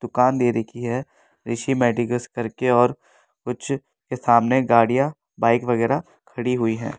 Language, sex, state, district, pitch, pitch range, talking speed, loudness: Hindi, male, Delhi, New Delhi, 120 Hz, 120-130 Hz, 145 wpm, -21 LUFS